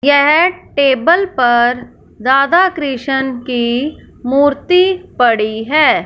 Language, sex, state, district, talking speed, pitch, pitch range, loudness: Hindi, male, Punjab, Fazilka, 90 wpm, 275 Hz, 245-310 Hz, -13 LUFS